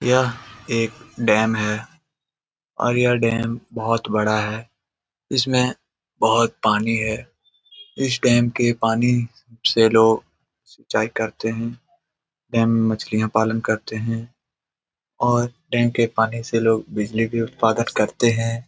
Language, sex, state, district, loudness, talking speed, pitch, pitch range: Hindi, male, Bihar, Jamui, -21 LUFS, 130 wpm, 115 Hz, 110-120 Hz